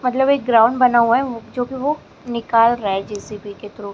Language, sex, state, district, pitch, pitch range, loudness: Hindi, female, Maharashtra, Gondia, 235 Hz, 210-250 Hz, -17 LUFS